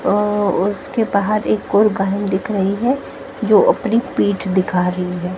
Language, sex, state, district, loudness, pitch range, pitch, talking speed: Hindi, female, Haryana, Jhajjar, -17 LUFS, 185-215 Hz, 200 Hz, 165 wpm